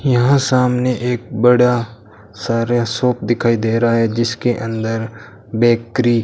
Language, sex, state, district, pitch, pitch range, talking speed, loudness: Hindi, male, Rajasthan, Bikaner, 115 Hz, 115-125 Hz, 135 wpm, -16 LUFS